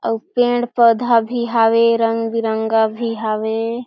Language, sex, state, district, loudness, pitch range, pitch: Chhattisgarhi, female, Chhattisgarh, Jashpur, -17 LUFS, 225-235 Hz, 230 Hz